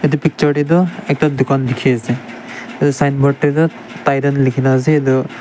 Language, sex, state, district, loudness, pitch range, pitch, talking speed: Nagamese, male, Nagaland, Dimapur, -15 LUFS, 130-155 Hz, 140 Hz, 145 wpm